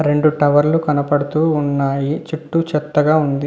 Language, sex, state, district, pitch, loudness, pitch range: Telugu, male, Andhra Pradesh, Visakhapatnam, 150 Hz, -17 LUFS, 145-155 Hz